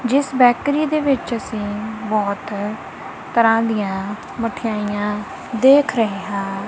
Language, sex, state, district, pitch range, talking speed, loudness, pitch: Punjabi, female, Punjab, Kapurthala, 205-240 Hz, 110 wpm, -19 LUFS, 215 Hz